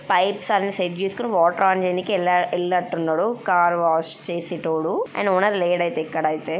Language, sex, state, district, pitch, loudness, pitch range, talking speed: Telugu, female, Andhra Pradesh, Guntur, 180 Hz, -21 LUFS, 170-190 Hz, 135 wpm